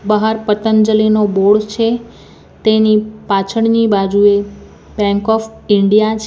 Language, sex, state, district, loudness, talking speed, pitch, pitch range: Gujarati, female, Gujarat, Valsad, -13 LUFS, 105 wpm, 215 Hz, 205-220 Hz